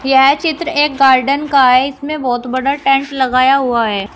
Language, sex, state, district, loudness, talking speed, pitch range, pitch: Hindi, female, Uttar Pradesh, Shamli, -13 LUFS, 190 wpm, 255-280 Hz, 270 Hz